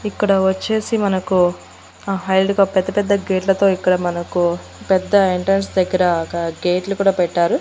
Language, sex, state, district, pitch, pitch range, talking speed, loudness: Telugu, female, Andhra Pradesh, Annamaya, 190 Hz, 180-195 Hz, 135 wpm, -17 LUFS